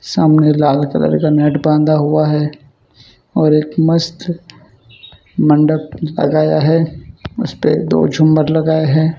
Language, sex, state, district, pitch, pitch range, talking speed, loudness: Hindi, male, Gujarat, Valsad, 155 Hz, 145-155 Hz, 130 wpm, -14 LUFS